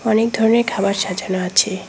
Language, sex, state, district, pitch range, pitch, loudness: Bengali, female, West Bengal, Cooch Behar, 190-225 Hz, 200 Hz, -17 LUFS